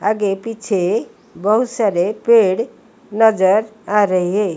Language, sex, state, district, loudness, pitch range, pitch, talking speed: Hindi, female, Odisha, Malkangiri, -16 LUFS, 195-225 Hz, 210 Hz, 105 wpm